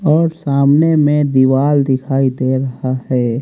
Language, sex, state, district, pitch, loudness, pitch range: Hindi, male, Haryana, Rohtak, 135 Hz, -14 LUFS, 130-150 Hz